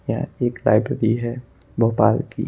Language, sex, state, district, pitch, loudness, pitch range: Hindi, male, Madhya Pradesh, Bhopal, 120 Hz, -20 LUFS, 110-120 Hz